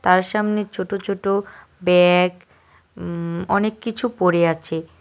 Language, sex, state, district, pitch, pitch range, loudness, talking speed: Bengali, male, West Bengal, Cooch Behar, 185 Hz, 180-205 Hz, -20 LUFS, 105 wpm